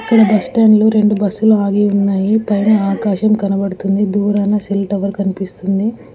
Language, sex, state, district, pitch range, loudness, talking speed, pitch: Telugu, female, Andhra Pradesh, Guntur, 200-215 Hz, -14 LUFS, 145 wpm, 205 Hz